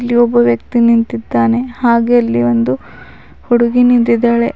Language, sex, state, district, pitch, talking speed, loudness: Kannada, female, Karnataka, Bidar, 235 Hz, 120 wpm, -12 LUFS